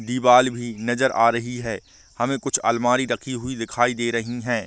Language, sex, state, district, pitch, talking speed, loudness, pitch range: Hindi, male, Bihar, Vaishali, 120 Hz, 205 wpm, -22 LUFS, 115-125 Hz